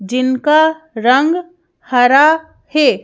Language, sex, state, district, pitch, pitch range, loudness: Hindi, female, Madhya Pradesh, Bhopal, 300 Hz, 255-320 Hz, -13 LUFS